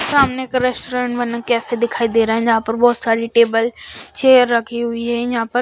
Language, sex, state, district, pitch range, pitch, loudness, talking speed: Hindi, female, Haryana, Charkhi Dadri, 230-245 Hz, 235 Hz, -17 LUFS, 215 wpm